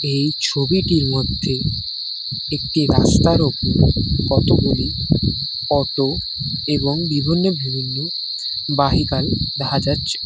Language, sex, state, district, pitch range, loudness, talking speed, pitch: Bengali, male, West Bengal, Cooch Behar, 130-150 Hz, -18 LUFS, 80 wpm, 140 Hz